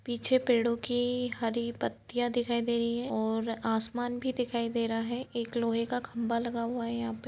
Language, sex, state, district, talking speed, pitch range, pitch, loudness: Hindi, female, Uttar Pradesh, Etah, 215 wpm, 230-245 Hz, 235 Hz, -31 LUFS